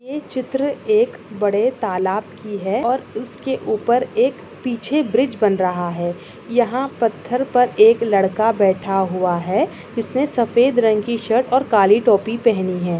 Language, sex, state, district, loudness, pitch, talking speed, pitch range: Hindi, female, Chhattisgarh, Kabirdham, -18 LUFS, 225 Hz, 160 wpm, 195-255 Hz